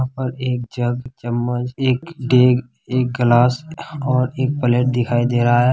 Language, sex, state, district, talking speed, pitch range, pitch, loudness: Hindi, male, Bihar, Kishanganj, 155 wpm, 120-130 Hz, 125 Hz, -18 LUFS